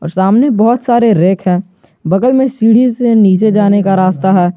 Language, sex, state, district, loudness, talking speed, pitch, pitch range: Hindi, male, Jharkhand, Garhwa, -10 LUFS, 185 wpm, 205 Hz, 185-235 Hz